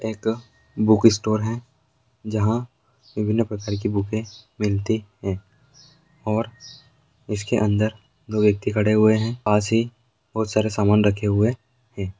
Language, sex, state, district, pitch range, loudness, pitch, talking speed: Hindi, male, Chhattisgarh, Raigarh, 105-120 Hz, -22 LUFS, 110 Hz, 135 wpm